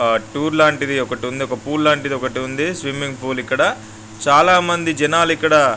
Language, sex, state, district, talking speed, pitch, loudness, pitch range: Telugu, male, Andhra Pradesh, Guntur, 145 wpm, 140 Hz, -17 LUFS, 130-155 Hz